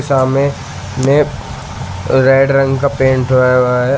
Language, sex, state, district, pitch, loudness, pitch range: Hindi, male, Uttar Pradesh, Shamli, 130 Hz, -12 LUFS, 125-135 Hz